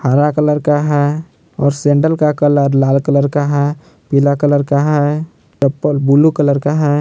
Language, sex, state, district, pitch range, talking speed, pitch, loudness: Hindi, male, Jharkhand, Palamu, 140-150 Hz, 180 wpm, 145 Hz, -14 LUFS